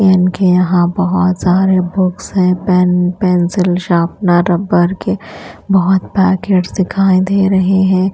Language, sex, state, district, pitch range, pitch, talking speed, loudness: Hindi, female, Punjab, Kapurthala, 180-190 Hz, 185 Hz, 125 wpm, -13 LUFS